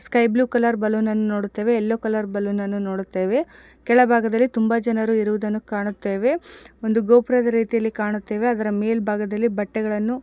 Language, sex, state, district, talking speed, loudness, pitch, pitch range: Kannada, female, Karnataka, Gulbarga, 140 wpm, -21 LUFS, 220 Hz, 210-235 Hz